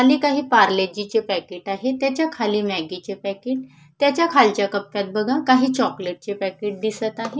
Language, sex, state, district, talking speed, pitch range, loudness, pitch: Marathi, female, Maharashtra, Solapur, 145 wpm, 195-260 Hz, -21 LUFS, 215 Hz